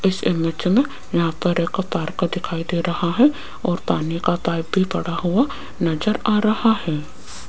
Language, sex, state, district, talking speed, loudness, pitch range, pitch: Hindi, female, Rajasthan, Jaipur, 175 wpm, -21 LUFS, 165-210 Hz, 175 Hz